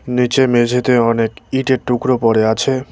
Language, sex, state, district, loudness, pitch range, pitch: Bengali, male, West Bengal, Cooch Behar, -15 LUFS, 115-130 Hz, 125 Hz